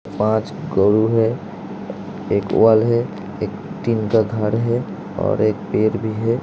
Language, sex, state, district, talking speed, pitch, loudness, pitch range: Hindi, male, Uttar Pradesh, Hamirpur, 150 wpm, 110 Hz, -19 LUFS, 105-115 Hz